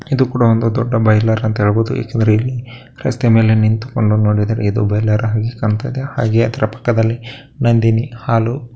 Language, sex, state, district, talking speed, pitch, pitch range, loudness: Kannada, male, Karnataka, Bellary, 160 wpm, 115 Hz, 110-120 Hz, -15 LUFS